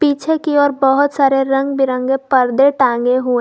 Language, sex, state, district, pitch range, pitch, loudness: Hindi, female, Jharkhand, Garhwa, 260-285 Hz, 270 Hz, -14 LUFS